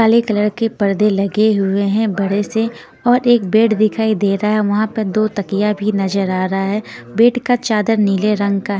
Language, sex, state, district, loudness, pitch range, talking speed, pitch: Hindi, female, Haryana, Rohtak, -16 LUFS, 200-220 Hz, 220 wpm, 210 Hz